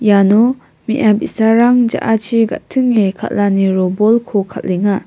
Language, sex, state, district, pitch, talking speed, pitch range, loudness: Garo, female, Meghalaya, West Garo Hills, 215 Hz, 95 wpm, 200-235 Hz, -14 LUFS